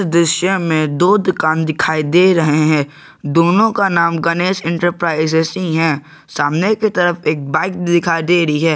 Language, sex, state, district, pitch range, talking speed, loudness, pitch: Hindi, male, Jharkhand, Garhwa, 155-180 Hz, 165 wpm, -15 LUFS, 170 Hz